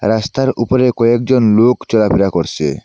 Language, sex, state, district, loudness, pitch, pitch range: Bengali, male, Assam, Hailakandi, -13 LUFS, 115 Hz, 100-125 Hz